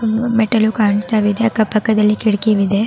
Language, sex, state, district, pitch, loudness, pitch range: Kannada, female, Karnataka, Raichur, 215 Hz, -15 LUFS, 210-220 Hz